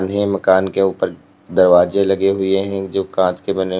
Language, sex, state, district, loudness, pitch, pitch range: Hindi, male, Uttar Pradesh, Lalitpur, -16 LUFS, 95 Hz, 95-100 Hz